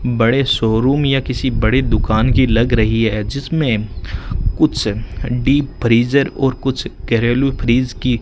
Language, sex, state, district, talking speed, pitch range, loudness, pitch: Hindi, male, Rajasthan, Bikaner, 145 wpm, 110-135 Hz, -16 LUFS, 120 Hz